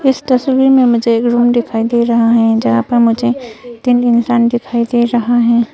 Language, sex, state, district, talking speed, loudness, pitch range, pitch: Hindi, female, Arunachal Pradesh, Longding, 200 wpm, -12 LUFS, 235-245 Hz, 240 Hz